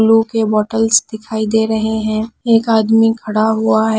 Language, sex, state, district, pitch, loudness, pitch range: Hindi, female, Punjab, Pathankot, 220 Hz, -14 LUFS, 220-225 Hz